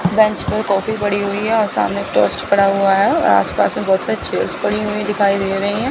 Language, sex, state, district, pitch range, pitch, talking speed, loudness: Hindi, female, Chandigarh, Chandigarh, 195-215 Hz, 200 Hz, 245 wpm, -16 LUFS